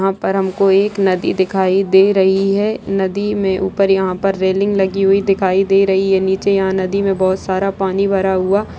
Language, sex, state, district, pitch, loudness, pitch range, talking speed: Hindi, male, Bihar, Araria, 195 Hz, -15 LUFS, 190-195 Hz, 205 wpm